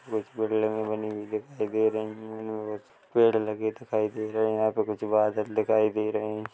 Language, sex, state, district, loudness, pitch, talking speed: Hindi, male, Chhattisgarh, Korba, -28 LUFS, 110 Hz, 245 wpm